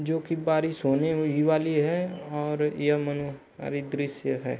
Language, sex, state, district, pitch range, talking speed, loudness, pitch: Hindi, male, Bihar, Gopalganj, 145-160 Hz, 155 wpm, -27 LUFS, 150 Hz